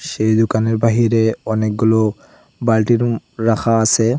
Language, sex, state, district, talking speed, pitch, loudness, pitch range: Bengali, male, Assam, Hailakandi, 100 wpm, 110 Hz, -16 LUFS, 110-115 Hz